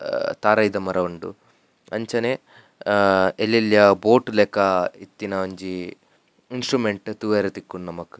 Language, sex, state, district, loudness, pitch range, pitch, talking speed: Tulu, male, Karnataka, Dakshina Kannada, -21 LUFS, 95-110 Hz, 105 Hz, 125 wpm